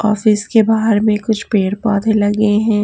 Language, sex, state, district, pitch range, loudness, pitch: Hindi, female, Haryana, Jhajjar, 210-220 Hz, -14 LUFS, 215 Hz